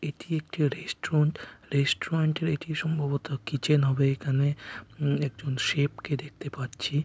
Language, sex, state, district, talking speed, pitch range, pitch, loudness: Bengali, male, West Bengal, Kolkata, 145 wpm, 135-155 Hz, 145 Hz, -28 LUFS